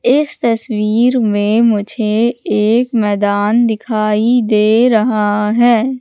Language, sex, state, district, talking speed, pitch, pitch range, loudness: Hindi, female, Madhya Pradesh, Katni, 100 wpm, 220 Hz, 210-240 Hz, -13 LUFS